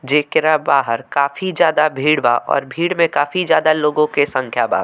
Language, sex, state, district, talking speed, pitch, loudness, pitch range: Bhojpuri, male, Bihar, Muzaffarpur, 185 wpm, 150 Hz, -16 LUFS, 140-155 Hz